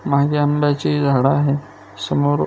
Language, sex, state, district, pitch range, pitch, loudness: Marathi, male, Maharashtra, Dhule, 135-145 Hz, 140 Hz, -18 LUFS